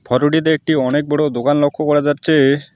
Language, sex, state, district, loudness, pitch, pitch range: Bengali, male, West Bengal, Alipurduar, -15 LUFS, 145 Hz, 145-155 Hz